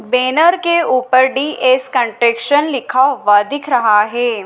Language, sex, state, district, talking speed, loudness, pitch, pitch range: Hindi, female, Madhya Pradesh, Dhar, 135 wpm, -13 LUFS, 255 Hz, 235-285 Hz